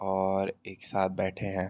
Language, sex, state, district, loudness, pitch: Hindi, male, Uttar Pradesh, Hamirpur, -31 LUFS, 95 Hz